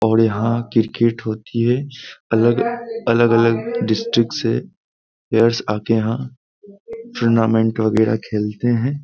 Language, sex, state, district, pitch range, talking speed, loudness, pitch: Hindi, male, Bihar, Jamui, 110-125 Hz, 100 wpm, -18 LUFS, 115 Hz